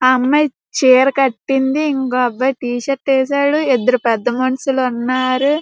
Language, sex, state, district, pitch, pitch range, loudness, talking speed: Telugu, female, Andhra Pradesh, Srikakulam, 260 Hz, 250-275 Hz, -15 LUFS, 140 wpm